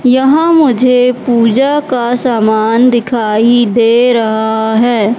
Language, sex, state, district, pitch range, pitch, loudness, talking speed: Hindi, female, Madhya Pradesh, Katni, 225-250 Hz, 240 Hz, -10 LUFS, 105 wpm